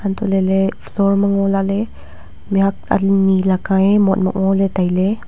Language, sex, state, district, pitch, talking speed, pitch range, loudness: Wancho, female, Arunachal Pradesh, Longding, 195 Hz, 160 wpm, 190-200 Hz, -16 LUFS